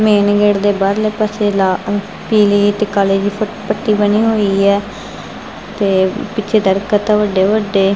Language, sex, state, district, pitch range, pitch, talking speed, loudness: Punjabi, female, Punjab, Fazilka, 200-215 Hz, 205 Hz, 145 wpm, -14 LUFS